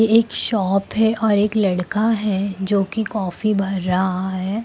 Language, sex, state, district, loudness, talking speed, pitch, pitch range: Hindi, female, Bihar, Samastipur, -18 LUFS, 180 wpm, 205 Hz, 190-220 Hz